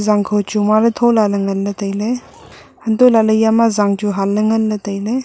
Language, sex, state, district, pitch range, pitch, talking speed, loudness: Wancho, female, Arunachal Pradesh, Longding, 205-225 Hz, 215 Hz, 240 wpm, -15 LUFS